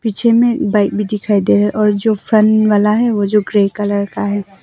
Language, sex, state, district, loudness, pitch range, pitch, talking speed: Hindi, female, Arunachal Pradesh, Papum Pare, -14 LUFS, 205-215 Hz, 210 Hz, 245 wpm